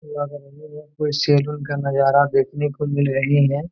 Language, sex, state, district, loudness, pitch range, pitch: Hindi, male, Bihar, Saran, -20 LUFS, 140-150 Hz, 145 Hz